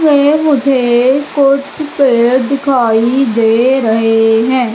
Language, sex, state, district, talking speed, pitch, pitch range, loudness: Hindi, female, Madhya Pradesh, Umaria, 100 wpm, 260 Hz, 235-280 Hz, -11 LUFS